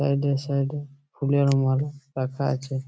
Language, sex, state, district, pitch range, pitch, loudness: Bengali, male, West Bengal, Malda, 135-140 Hz, 140 Hz, -25 LUFS